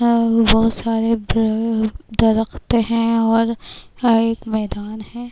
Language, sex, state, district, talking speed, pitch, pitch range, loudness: Urdu, female, Bihar, Kishanganj, 115 wpm, 225 Hz, 220-230 Hz, -18 LUFS